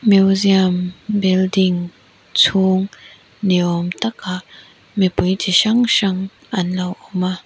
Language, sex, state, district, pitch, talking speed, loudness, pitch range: Mizo, female, Mizoram, Aizawl, 190 Hz, 105 wpm, -17 LUFS, 185-195 Hz